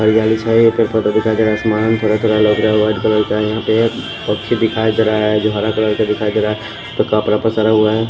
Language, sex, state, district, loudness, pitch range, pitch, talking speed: Hindi, male, Maharashtra, Washim, -15 LUFS, 105-110 Hz, 110 Hz, 235 wpm